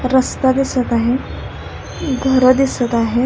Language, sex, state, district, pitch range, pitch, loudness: Marathi, female, Maharashtra, Solapur, 245-265 Hz, 255 Hz, -16 LUFS